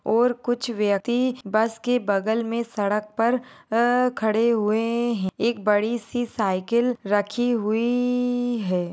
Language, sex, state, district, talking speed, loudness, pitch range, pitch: Hindi, female, Maharashtra, Nagpur, 135 wpm, -23 LUFS, 210-245 Hz, 230 Hz